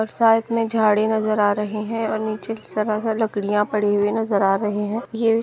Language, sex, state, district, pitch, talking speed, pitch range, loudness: Hindi, female, Maharashtra, Solapur, 215 Hz, 165 wpm, 210-225 Hz, -21 LUFS